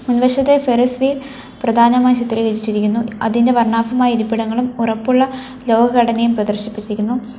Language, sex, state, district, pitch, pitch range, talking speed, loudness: Malayalam, female, Kerala, Kollam, 235 Hz, 225-250 Hz, 90 wpm, -15 LUFS